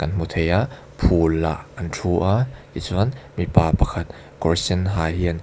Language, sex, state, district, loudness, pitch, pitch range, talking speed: Mizo, male, Mizoram, Aizawl, -22 LUFS, 85 Hz, 80-95 Hz, 165 wpm